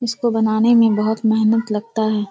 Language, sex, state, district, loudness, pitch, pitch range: Hindi, female, Bihar, Kishanganj, -17 LUFS, 220 Hz, 215-230 Hz